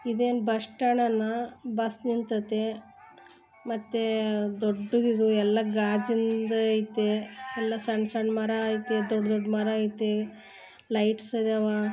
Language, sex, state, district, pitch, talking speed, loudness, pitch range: Kannada, female, Karnataka, Bellary, 220 Hz, 120 wpm, -28 LUFS, 215-230 Hz